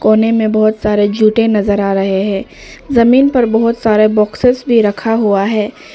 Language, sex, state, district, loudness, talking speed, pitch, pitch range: Hindi, female, Arunachal Pradesh, Papum Pare, -12 LUFS, 180 wpm, 215 Hz, 210-230 Hz